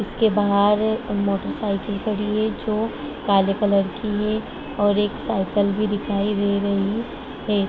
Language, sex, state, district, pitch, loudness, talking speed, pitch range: Hindi, female, Bihar, Sitamarhi, 205 Hz, -22 LUFS, 150 wpm, 200-215 Hz